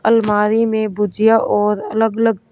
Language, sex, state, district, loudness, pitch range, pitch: Hindi, female, Punjab, Fazilka, -16 LUFS, 210-225 Hz, 220 Hz